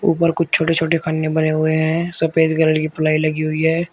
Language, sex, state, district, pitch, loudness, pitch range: Hindi, male, Uttar Pradesh, Shamli, 160 Hz, -17 LUFS, 155-165 Hz